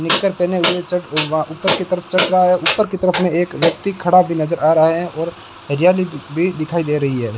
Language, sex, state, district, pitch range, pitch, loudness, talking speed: Hindi, male, Rajasthan, Bikaner, 160-180 Hz, 175 Hz, -16 LUFS, 245 wpm